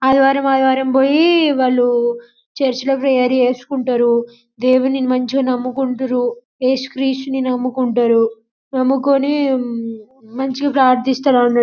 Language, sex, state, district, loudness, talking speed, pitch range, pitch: Telugu, female, Telangana, Karimnagar, -16 LUFS, 90 wpm, 245-270 Hz, 255 Hz